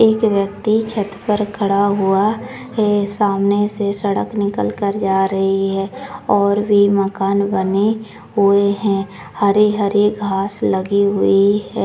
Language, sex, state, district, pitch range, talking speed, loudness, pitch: Hindi, female, Uttarakhand, Tehri Garhwal, 195-210 Hz, 130 wpm, -17 LUFS, 200 Hz